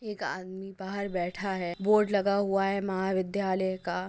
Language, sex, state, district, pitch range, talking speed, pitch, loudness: Hindi, female, Chhattisgarh, Bastar, 185-200 Hz, 160 wpm, 195 Hz, -29 LUFS